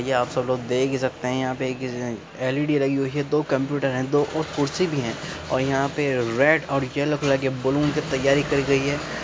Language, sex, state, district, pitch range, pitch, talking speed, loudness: Hindi, male, Uttar Pradesh, Muzaffarnagar, 130-145 Hz, 135 Hz, 245 wpm, -23 LUFS